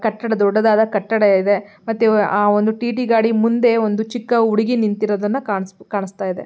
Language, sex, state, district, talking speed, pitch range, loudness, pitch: Kannada, female, Karnataka, Mysore, 160 wpm, 205-225 Hz, -17 LUFS, 215 Hz